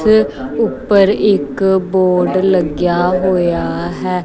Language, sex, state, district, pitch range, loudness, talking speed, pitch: Punjabi, female, Punjab, Kapurthala, 175-195 Hz, -14 LUFS, 100 wpm, 185 Hz